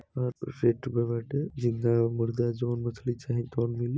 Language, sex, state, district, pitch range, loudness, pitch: Bhojpuri, male, Uttar Pradesh, Deoria, 120-125 Hz, -29 LUFS, 120 Hz